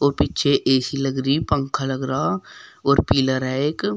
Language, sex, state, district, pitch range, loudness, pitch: Hindi, female, Uttar Pradesh, Shamli, 130-140 Hz, -21 LUFS, 135 Hz